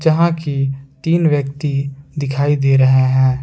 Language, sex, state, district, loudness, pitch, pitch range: Hindi, male, Jharkhand, Palamu, -16 LUFS, 140 Hz, 135-150 Hz